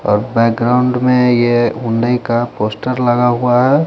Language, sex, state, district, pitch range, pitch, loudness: Hindi, male, Chandigarh, Chandigarh, 115-125 Hz, 120 Hz, -14 LUFS